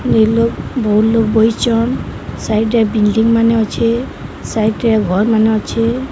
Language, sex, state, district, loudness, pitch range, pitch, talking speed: Odia, male, Odisha, Sambalpur, -14 LUFS, 220-230 Hz, 225 Hz, 125 wpm